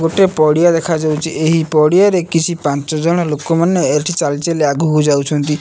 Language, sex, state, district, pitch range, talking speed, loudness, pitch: Odia, male, Odisha, Nuapada, 150-170 Hz, 180 wpm, -14 LUFS, 160 Hz